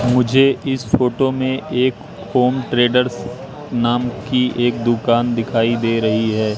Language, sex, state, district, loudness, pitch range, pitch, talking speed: Hindi, male, Madhya Pradesh, Katni, -17 LUFS, 115-130 Hz, 120 Hz, 135 wpm